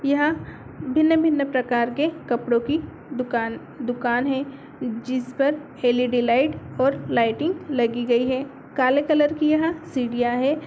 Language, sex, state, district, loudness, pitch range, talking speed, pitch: Hindi, female, Bihar, Sitamarhi, -23 LUFS, 245-295 Hz, 130 wpm, 265 Hz